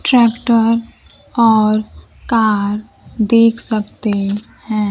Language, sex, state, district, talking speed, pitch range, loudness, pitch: Hindi, female, Bihar, Kaimur, 75 wpm, 215-230 Hz, -15 LUFS, 220 Hz